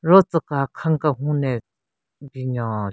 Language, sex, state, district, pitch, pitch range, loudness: Rengma, female, Nagaland, Kohima, 140 Hz, 130-160 Hz, -22 LUFS